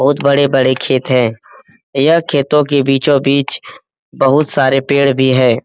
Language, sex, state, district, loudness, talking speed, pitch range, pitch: Hindi, male, Bihar, Jamui, -13 LUFS, 170 wpm, 130-140 Hz, 135 Hz